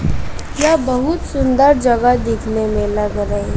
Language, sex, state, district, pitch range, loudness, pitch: Hindi, female, Bihar, West Champaran, 210-275 Hz, -16 LUFS, 245 Hz